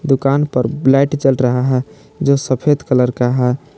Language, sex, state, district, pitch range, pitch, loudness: Hindi, male, Jharkhand, Palamu, 125-145 Hz, 135 Hz, -15 LUFS